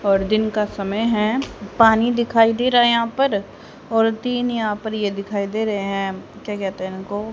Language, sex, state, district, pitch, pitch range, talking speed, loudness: Hindi, female, Haryana, Jhajjar, 215 Hz, 200-230 Hz, 205 wpm, -20 LUFS